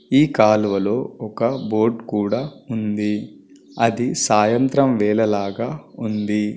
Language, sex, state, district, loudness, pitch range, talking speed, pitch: Telugu, male, Andhra Pradesh, Guntur, -20 LUFS, 105-115 Hz, 100 wpm, 110 Hz